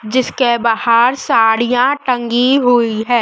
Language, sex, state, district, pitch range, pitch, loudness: Hindi, female, Madhya Pradesh, Dhar, 230-250 Hz, 240 Hz, -13 LUFS